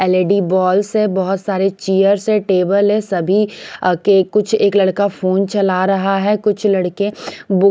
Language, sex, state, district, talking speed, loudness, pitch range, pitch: Hindi, female, Punjab, Pathankot, 165 wpm, -15 LUFS, 190-205 Hz, 195 Hz